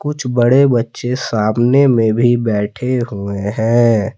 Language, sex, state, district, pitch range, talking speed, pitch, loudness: Hindi, male, Jharkhand, Palamu, 110-125 Hz, 130 wpm, 120 Hz, -15 LUFS